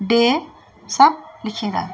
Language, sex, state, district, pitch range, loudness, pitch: Garhwali, female, Uttarakhand, Tehri Garhwal, 215-310 Hz, -18 LUFS, 235 Hz